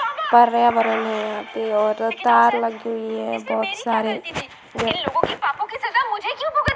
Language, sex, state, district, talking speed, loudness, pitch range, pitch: Hindi, female, Bihar, Vaishali, 105 wpm, -20 LUFS, 215-300 Hz, 230 Hz